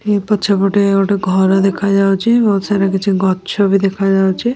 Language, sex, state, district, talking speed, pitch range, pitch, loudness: Odia, male, Odisha, Nuapada, 160 wpm, 195-200 Hz, 195 Hz, -14 LUFS